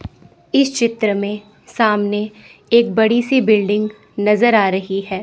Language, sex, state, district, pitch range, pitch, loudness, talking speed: Hindi, female, Chandigarh, Chandigarh, 205-235 Hz, 215 Hz, -16 LUFS, 140 wpm